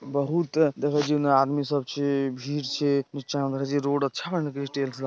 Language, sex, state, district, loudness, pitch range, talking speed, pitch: Angika, male, Bihar, Purnia, -26 LUFS, 140-145 Hz, 165 wpm, 140 Hz